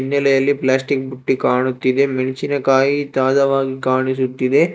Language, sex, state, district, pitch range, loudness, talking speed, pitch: Kannada, male, Karnataka, Bangalore, 130-140 Hz, -17 LUFS, 100 wpm, 130 Hz